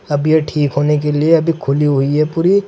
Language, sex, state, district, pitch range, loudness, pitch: Hindi, male, Uttar Pradesh, Saharanpur, 145-165 Hz, -14 LUFS, 150 Hz